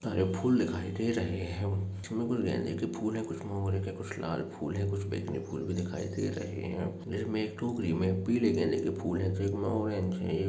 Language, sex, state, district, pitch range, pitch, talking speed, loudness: Hindi, male, Uttar Pradesh, Budaun, 90-105 Hz, 95 Hz, 230 wpm, -33 LUFS